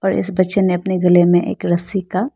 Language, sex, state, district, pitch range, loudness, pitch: Hindi, female, Arunachal Pradesh, Lower Dibang Valley, 175-190 Hz, -16 LUFS, 185 Hz